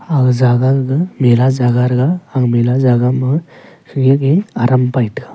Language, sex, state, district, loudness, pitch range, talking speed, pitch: Wancho, male, Arunachal Pradesh, Longding, -13 LUFS, 125-140 Hz, 170 wpm, 130 Hz